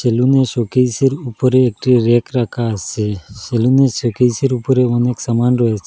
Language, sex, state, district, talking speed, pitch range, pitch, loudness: Bengali, male, Assam, Hailakandi, 175 wpm, 115-130 Hz, 125 Hz, -15 LUFS